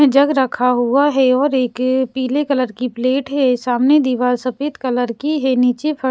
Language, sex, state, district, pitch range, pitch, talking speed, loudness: Hindi, female, Bihar, Katihar, 250-280 Hz, 260 Hz, 185 wpm, -16 LUFS